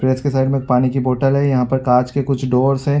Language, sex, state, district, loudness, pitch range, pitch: Hindi, male, Chhattisgarh, Raigarh, -17 LUFS, 130-135 Hz, 130 Hz